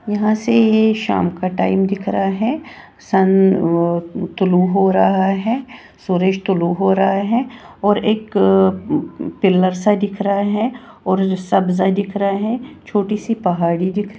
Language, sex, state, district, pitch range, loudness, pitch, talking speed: Hindi, female, Haryana, Jhajjar, 190-220 Hz, -17 LUFS, 200 Hz, 150 wpm